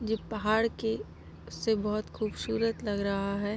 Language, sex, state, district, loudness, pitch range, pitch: Hindi, female, Jharkhand, Sahebganj, -31 LUFS, 205-225 Hz, 215 Hz